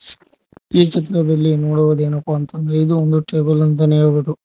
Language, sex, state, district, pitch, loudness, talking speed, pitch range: Kannada, male, Karnataka, Koppal, 155 Hz, -16 LUFS, 160 wpm, 150-160 Hz